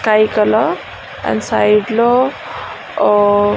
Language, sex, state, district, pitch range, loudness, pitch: Telugu, female, Andhra Pradesh, Srikakulam, 210-240 Hz, -14 LUFS, 215 Hz